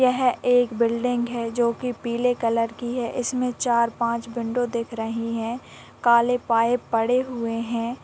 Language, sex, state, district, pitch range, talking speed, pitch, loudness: Hindi, female, Bihar, Muzaffarpur, 230-245 Hz, 155 wpm, 235 Hz, -23 LUFS